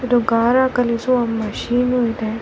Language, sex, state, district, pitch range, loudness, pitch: Kannada, female, Karnataka, Bellary, 230-250 Hz, -18 LUFS, 240 Hz